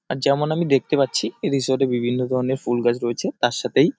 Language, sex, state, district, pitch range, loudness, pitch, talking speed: Bengali, male, West Bengal, Jalpaiguri, 120-140 Hz, -21 LUFS, 130 Hz, 210 wpm